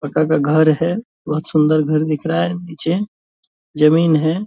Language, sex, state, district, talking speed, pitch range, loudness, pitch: Hindi, male, Bihar, Purnia, 175 wpm, 155-170 Hz, -17 LUFS, 155 Hz